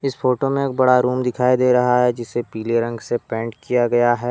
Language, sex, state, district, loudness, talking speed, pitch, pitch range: Hindi, male, Jharkhand, Deoghar, -19 LUFS, 250 wpm, 125 Hz, 120-125 Hz